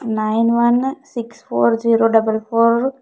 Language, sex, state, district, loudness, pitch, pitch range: Kannada, female, Karnataka, Bidar, -16 LUFS, 230 Hz, 225-240 Hz